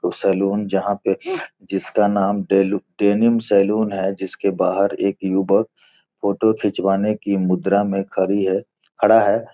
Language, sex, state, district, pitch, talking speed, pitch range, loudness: Hindi, male, Bihar, Gopalganj, 100 Hz, 145 wpm, 95-100 Hz, -19 LUFS